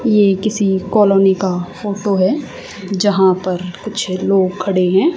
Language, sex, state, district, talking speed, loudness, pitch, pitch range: Hindi, female, Haryana, Charkhi Dadri, 140 wpm, -15 LUFS, 195 Hz, 185-210 Hz